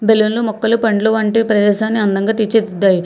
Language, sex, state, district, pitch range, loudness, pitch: Telugu, female, Telangana, Hyderabad, 205-225 Hz, -15 LUFS, 220 Hz